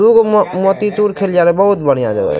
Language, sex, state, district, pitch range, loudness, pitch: Maithili, male, Bihar, Madhepura, 185-210 Hz, -12 LUFS, 200 Hz